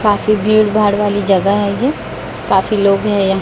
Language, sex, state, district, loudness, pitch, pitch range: Hindi, female, Chhattisgarh, Raipur, -14 LUFS, 205 Hz, 200-215 Hz